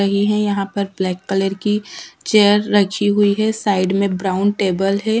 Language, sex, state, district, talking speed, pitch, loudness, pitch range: Hindi, female, Punjab, Fazilka, 185 wpm, 200 Hz, -17 LUFS, 195-210 Hz